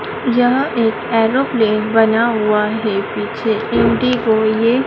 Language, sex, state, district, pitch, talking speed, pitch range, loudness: Hindi, female, Madhya Pradesh, Dhar, 225 Hz, 125 wpm, 220-240 Hz, -15 LUFS